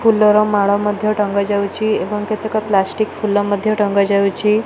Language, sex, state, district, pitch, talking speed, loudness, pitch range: Odia, female, Odisha, Malkangiri, 210 Hz, 155 wpm, -16 LUFS, 200-215 Hz